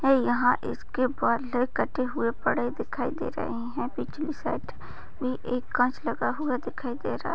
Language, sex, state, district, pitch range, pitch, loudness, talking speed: Hindi, female, Chhattisgarh, Jashpur, 245-275 Hz, 255 Hz, -28 LUFS, 185 wpm